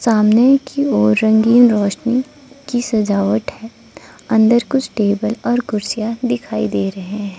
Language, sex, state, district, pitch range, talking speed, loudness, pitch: Hindi, female, Arunachal Pradesh, Lower Dibang Valley, 205-245 Hz, 140 wpm, -16 LUFS, 225 Hz